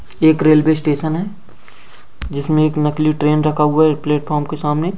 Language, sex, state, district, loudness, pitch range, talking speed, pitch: Hindi, male, Jharkhand, Sahebganj, -16 LUFS, 150-155 Hz, 180 wpm, 155 Hz